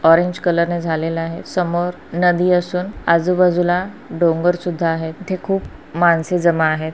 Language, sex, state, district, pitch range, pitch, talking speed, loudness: Marathi, female, Maharashtra, Pune, 165-180 Hz, 175 Hz, 140 wpm, -18 LUFS